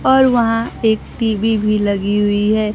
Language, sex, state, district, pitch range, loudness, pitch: Hindi, female, Bihar, Kaimur, 210-225 Hz, -16 LUFS, 215 Hz